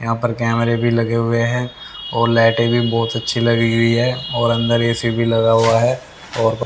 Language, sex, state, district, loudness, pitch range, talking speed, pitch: Hindi, male, Haryana, Rohtak, -17 LUFS, 115-120 Hz, 205 wpm, 115 Hz